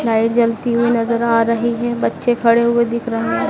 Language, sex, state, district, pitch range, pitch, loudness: Hindi, female, Madhya Pradesh, Dhar, 230-235 Hz, 235 Hz, -16 LUFS